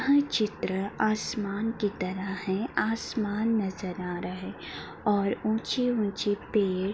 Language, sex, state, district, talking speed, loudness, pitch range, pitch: Hindi, female, Bihar, Madhepura, 130 wpm, -29 LUFS, 190-220 Hz, 205 Hz